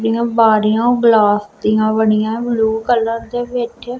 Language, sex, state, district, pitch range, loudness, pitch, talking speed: Punjabi, female, Punjab, Kapurthala, 215-240 Hz, -15 LUFS, 225 Hz, 150 wpm